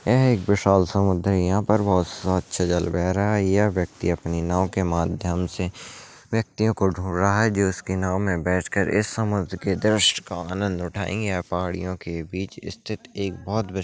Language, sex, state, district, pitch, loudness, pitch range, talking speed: Hindi, male, Uttarakhand, Uttarkashi, 95 Hz, -23 LUFS, 90-100 Hz, 200 wpm